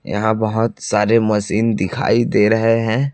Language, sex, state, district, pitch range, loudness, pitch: Hindi, male, Chhattisgarh, Raipur, 105-115 Hz, -17 LUFS, 110 Hz